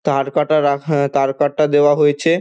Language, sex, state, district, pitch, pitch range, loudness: Bengali, male, West Bengal, Dakshin Dinajpur, 145 Hz, 140-150 Hz, -16 LUFS